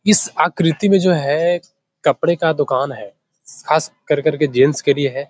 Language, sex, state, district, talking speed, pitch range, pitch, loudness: Hindi, male, Bihar, Jahanabad, 180 wpm, 140-180 Hz, 155 Hz, -17 LUFS